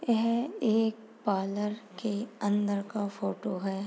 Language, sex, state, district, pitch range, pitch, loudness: Hindi, female, Chhattisgarh, Bastar, 200-225 Hz, 210 Hz, -31 LUFS